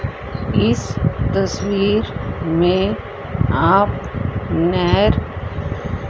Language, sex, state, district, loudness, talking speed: Hindi, female, Haryana, Rohtak, -19 LUFS, 50 wpm